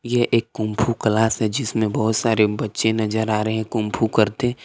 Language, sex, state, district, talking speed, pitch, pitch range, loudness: Hindi, male, Jharkhand, Palamu, 220 wpm, 110 Hz, 110-115 Hz, -20 LUFS